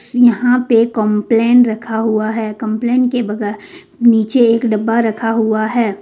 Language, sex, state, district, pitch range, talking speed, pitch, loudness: Hindi, female, Jharkhand, Ranchi, 215-240 Hz, 170 wpm, 225 Hz, -14 LUFS